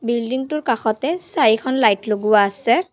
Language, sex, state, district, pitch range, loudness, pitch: Assamese, female, Assam, Sonitpur, 220-285 Hz, -18 LUFS, 235 Hz